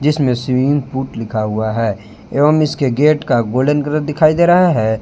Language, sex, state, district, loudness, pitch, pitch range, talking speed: Hindi, male, Jharkhand, Palamu, -15 LUFS, 135 Hz, 115-150 Hz, 190 wpm